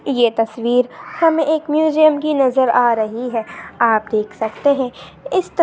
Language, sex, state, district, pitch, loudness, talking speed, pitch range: Hindi, female, Maharashtra, Pune, 250 Hz, -17 LUFS, 170 wpm, 230-310 Hz